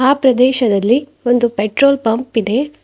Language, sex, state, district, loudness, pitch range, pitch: Kannada, female, Karnataka, Bidar, -14 LUFS, 225-270 Hz, 245 Hz